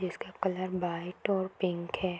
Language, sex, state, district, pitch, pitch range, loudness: Hindi, female, Uttar Pradesh, Budaun, 185 Hz, 175-185 Hz, -33 LUFS